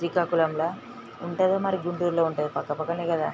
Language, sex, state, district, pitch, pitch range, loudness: Telugu, female, Andhra Pradesh, Srikakulam, 170 Hz, 160-180 Hz, -26 LUFS